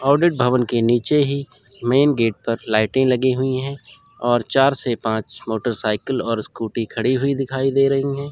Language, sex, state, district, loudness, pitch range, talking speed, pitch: Hindi, male, Chandigarh, Chandigarh, -20 LUFS, 115-135 Hz, 180 wpm, 130 Hz